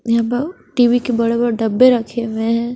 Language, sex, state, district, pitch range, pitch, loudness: Hindi, female, Haryana, Charkhi Dadri, 230-245 Hz, 235 Hz, -16 LUFS